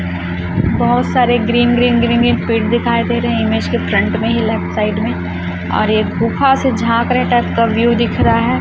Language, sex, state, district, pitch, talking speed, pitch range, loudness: Hindi, female, Chhattisgarh, Raipur, 230 Hz, 215 wpm, 210-240 Hz, -14 LUFS